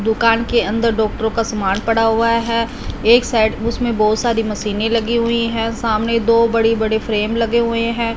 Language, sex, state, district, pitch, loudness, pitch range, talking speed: Hindi, female, Punjab, Fazilka, 230 Hz, -16 LUFS, 220-230 Hz, 190 wpm